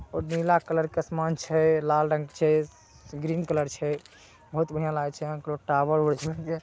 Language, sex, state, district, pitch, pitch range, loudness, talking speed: Maithili, male, Bihar, Saharsa, 155 Hz, 150-160 Hz, -27 LUFS, 190 wpm